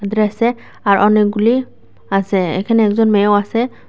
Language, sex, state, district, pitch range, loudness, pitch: Bengali, female, Tripura, West Tripura, 205-230 Hz, -15 LUFS, 210 Hz